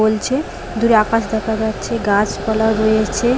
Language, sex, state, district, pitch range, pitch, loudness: Bengali, female, West Bengal, Paschim Medinipur, 215-225 Hz, 220 Hz, -17 LUFS